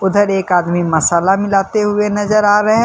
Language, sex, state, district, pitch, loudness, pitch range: Hindi, male, Jharkhand, Deoghar, 200 Hz, -14 LUFS, 180-210 Hz